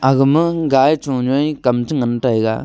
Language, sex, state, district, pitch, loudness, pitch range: Wancho, male, Arunachal Pradesh, Longding, 135 Hz, -16 LUFS, 125-150 Hz